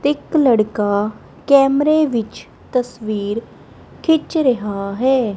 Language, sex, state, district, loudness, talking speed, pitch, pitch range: Punjabi, female, Punjab, Kapurthala, -17 LUFS, 100 wpm, 245 Hz, 210-285 Hz